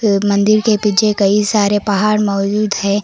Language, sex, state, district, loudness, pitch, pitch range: Hindi, female, Karnataka, Koppal, -14 LUFS, 205 Hz, 200-210 Hz